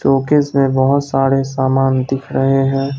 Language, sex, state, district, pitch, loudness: Hindi, male, Bihar, Katihar, 135 Hz, -15 LUFS